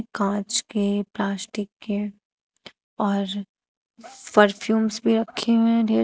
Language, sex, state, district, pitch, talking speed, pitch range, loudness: Hindi, female, Uttar Pradesh, Shamli, 210 Hz, 110 wpm, 200-225 Hz, -23 LUFS